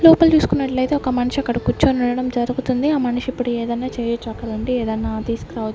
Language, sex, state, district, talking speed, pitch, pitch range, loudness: Telugu, female, Andhra Pradesh, Sri Satya Sai, 155 wpm, 245 Hz, 235-260 Hz, -20 LUFS